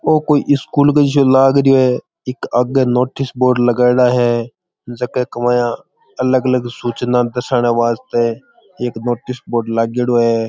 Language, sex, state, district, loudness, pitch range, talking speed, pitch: Rajasthani, male, Rajasthan, Churu, -15 LUFS, 120-130 Hz, 150 wpm, 125 Hz